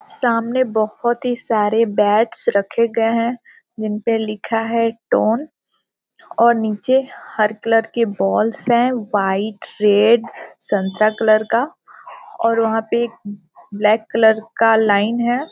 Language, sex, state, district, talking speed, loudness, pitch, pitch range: Hindi, female, Bihar, Gopalganj, 130 wpm, -17 LUFS, 225 Hz, 215-235 Hz